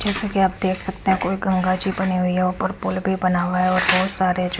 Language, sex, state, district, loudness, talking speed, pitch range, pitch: Hindi, female, Punjab, Fazilka, -20 LUFS, 260 wpm, 185-190 Hz, 185 Hz